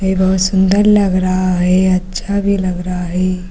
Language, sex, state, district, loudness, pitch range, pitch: Hindi, female, Uttar Pradesh, Lucknow, -14 LUFS, 185-190 Hz, 185 Hz